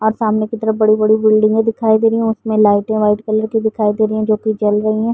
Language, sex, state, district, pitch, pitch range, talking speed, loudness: Hindi, female, Uttar Pradesh, Varanasi, 215 Hz, 215-220 Hz, 270 wpm, -15 LUFS